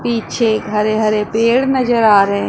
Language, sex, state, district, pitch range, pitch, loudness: Hindi, female, Punjab, Pathankot, 210-235 Hz, 220 Hz, -14 LUFS